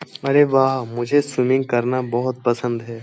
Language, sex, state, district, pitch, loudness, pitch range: Hindi, male, Uttar Pradesh, Jyotiba Phule Nagar, 125 Hz, -19 LUFS, 120-135 Hz